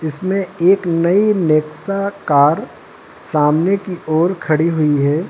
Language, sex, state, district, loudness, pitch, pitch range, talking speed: Hindi, male, Uttar Pradesh, Lucknow, -16 LUFS, 170 Hz, 155-195 Hz, 125 wpm